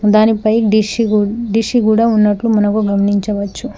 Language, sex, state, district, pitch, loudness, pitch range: Telugu, female, Telangana, Mahabubabad, 215 Hz, -14 LUFS, 210-225 Hz